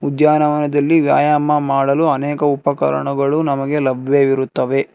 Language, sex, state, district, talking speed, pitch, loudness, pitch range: Kannada, male, Karnataka, Bangalore, 85 wpm, 145 Hz, -16 LUFS, 135-150 Hz